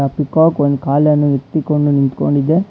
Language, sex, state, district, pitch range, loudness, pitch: Kannada, male, Karnataka, Bangalore, 140-155 Hz, -14 LUFS, 145 Hz